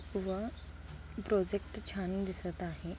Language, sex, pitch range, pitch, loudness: Marathi, female, 185-200 Hz, 195 Hz, -38 LUFS